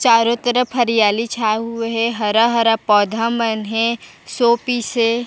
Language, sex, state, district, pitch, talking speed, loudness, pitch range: Chhattisgarhi, female, Chhattisgarh, Raigarh, 230 Hz, 160 wpm, -17 LUFS, 225-235 Hz